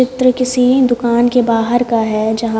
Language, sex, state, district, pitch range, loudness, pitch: Hindi, female, Haryana, Jhajjar, 230-250 Hz, -13 LUFS, 240 Hz